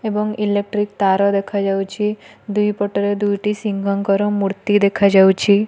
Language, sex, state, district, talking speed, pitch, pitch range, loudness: Odia, female, Odisha, Malkangiri, 115 wpm, 205 Hz, 200-210 Hz, -18 LUFS